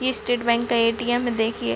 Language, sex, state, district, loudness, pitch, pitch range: Hindi, female, Chhattisgarh, Bilaspur, -22 LUFS, 235 Hz, 230-245 Hz